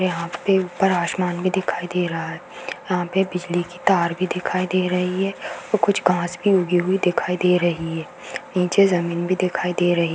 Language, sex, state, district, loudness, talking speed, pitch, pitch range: Hindi, female, Uttar Pradesh, Hamirpur, -21 LUFS, 215 wpm, 180 Hz, 175-185 Hz